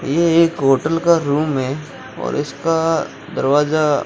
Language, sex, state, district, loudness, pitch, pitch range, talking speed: Hindi, male, Rajasthan, Jaisalmer, -17 LUFS, 155 Hz, 140-165 Hz, 135 wpm